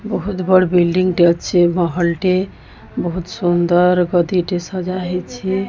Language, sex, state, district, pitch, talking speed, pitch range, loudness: Odia, female, Odisha, Sambalpur, 180 Hz, 125 wpm, 175-185 Hz, -16 LUFS